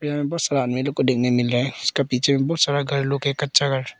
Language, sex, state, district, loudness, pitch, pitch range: Hindi, male, Arunachal Pradesh, Papum Pare, -21 LUFS, 140 Hz, 130-145 Hz